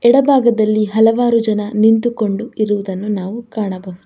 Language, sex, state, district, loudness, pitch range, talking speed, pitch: Kannada, female, Karnataka, Bangalore, -15 LUFS, 205-235 Hz, 105 wpm, 215 Hz